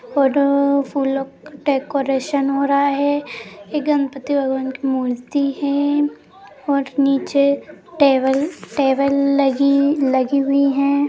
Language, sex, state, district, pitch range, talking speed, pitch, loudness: Hindi, female, Bihar, Madhepura, 270-285 Hz, 115 wpm, 280 Hz, -18 LUFS